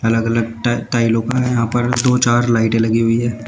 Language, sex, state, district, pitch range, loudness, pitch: Hindi, male, Uttar Pradesh, Shamli, 115-120 Hz, -16 LUFS, 115 Hz